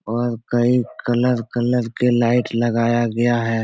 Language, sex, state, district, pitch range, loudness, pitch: Hindi, male, Bihar, Supaul, 115-120 Hz, -19 LUFS, 120 Hz